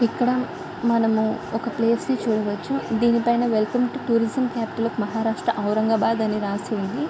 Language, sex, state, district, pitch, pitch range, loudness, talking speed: Telugu, female, Andhra Pradesh, Krishna, 230 Hz, 220-235 Hz, -23 LUFS, 145 wpm